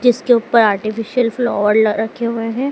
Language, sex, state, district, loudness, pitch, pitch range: Hindi, female, Madhya Pradesh, Dhar, -16 LUFS, 230 Hz, 215-245 Hz